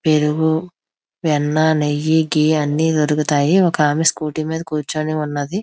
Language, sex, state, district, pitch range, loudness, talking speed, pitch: Telugu, female, Andhra Pradesh, Visakhapatnam, 150-160 Hz, -17 LUFS, 130 wpm, 155 Hz